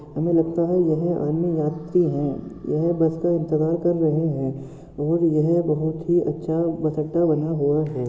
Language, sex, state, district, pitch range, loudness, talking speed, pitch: Hindi, male, Uttar Pradesh, Muzaffarnagar, 150-170 Hz, -22 LUFS, 180 wpm, 160 Hz